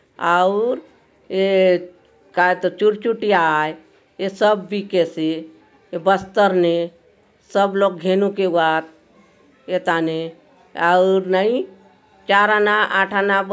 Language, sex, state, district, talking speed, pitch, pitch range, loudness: Halbi, male, Chhattisgarh, Bastar, 105 wpm, 190 Hz, 170-200 Hz, -18 LUFS